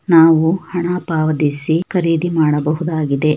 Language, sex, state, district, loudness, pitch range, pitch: Kannada, female, Karnataka, Shimoga, -16 LUFS, 155-170 Hz, 160 Hz